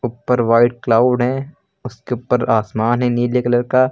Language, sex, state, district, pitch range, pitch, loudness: Hindi, male, Uttar Pradesh, Lucknow, 120-125 Hz, 125 Hz, -17 LUFS